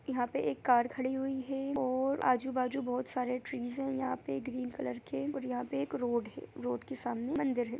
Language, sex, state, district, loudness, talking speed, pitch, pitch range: Hindi, male, Bihar, Gaya, -35 LUFS, 225 wpm, 255 Hz, 245-265 Hz